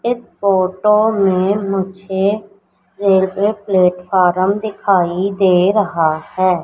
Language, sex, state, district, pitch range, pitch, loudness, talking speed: Hindi, female, Madhya Pradesh, Katni, 185-200 Hz, 195 Hz, -15 LUFS, 90 wpm